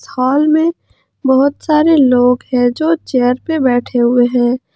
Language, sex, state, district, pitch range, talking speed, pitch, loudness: Hindi, male, Jharkhand, Ranchi, 245-305 Hz, 150 wpm, 260 Hz, -13 LUFS